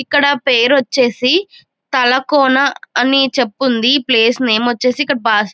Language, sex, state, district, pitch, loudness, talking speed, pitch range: Telugu, female, Andhra Pradesh, Chittoor, 260 Hz, -13 LUFS, 150 wpm, 245-280 Hz